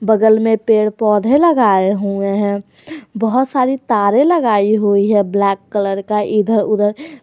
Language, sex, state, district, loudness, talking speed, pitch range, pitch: Hindi, female, Jharkhand, Garhwa, -14 LUFS, 150 wpm, 205-240 Hz, 215 Hz